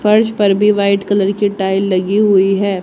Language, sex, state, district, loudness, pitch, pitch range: Hindi, female, Haryana, Jhajjar, -13 LUFS, 200 Hz, 195-210 Hz